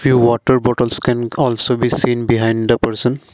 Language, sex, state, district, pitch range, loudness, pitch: English, male, Assam, Kamrup Metropolitan, 115-125 Hz, -15 LUFS, 120 Hz